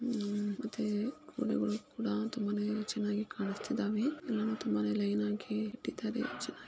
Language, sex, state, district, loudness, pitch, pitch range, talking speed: Kannada, female, Karnataka, Shimoga, -36 LUFS, 215 Hz, 205-230 Hz, 115 wpm